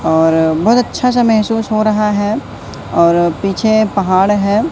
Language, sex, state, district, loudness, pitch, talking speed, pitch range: Hindi, male, Madhya Pradesh, Katni, -13 LUFS, 205 Hz, 150 wpm, 170-220 Hz